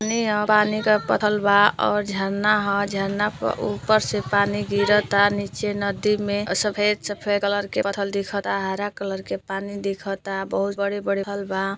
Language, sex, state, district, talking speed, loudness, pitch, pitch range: Bhojpuri, female, Uttar Pradesh, Deoria, 170 wpm, -22 LUFS, 200 Hz, 200-210 Hz